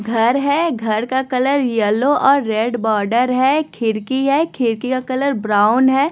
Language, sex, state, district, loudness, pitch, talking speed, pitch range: Hindi, female, Bihar, West Champaran, -17 LUFS, 255 Hz, 165 wpm, 225-275 Hz